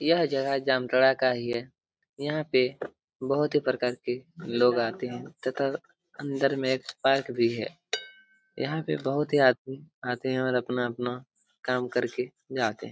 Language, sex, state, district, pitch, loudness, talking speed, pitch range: Hindi, male, Jharkhand, Jamtara, 130 Hz, -28 LUFS, 165 wpm, 125-145 Hz